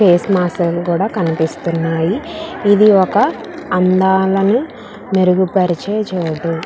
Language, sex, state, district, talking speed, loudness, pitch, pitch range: Telugu, female, Andhra Pradesh, Krishna, 100 wpm, -15 LUFS, 185 Hz, 170-205 Hz